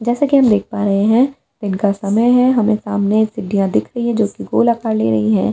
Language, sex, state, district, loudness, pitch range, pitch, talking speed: Hindi, female, Delhi, New Delhi, -15 LUFS, 200-235 Hz, 215 Hz, 240 wpm